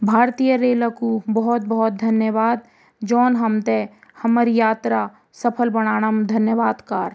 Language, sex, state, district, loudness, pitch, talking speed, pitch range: Garhwali, female, Uttarakhand, Tehri Garhwal, -19 LUFS, 225 Hz, 125 wpm, 220-235 Hz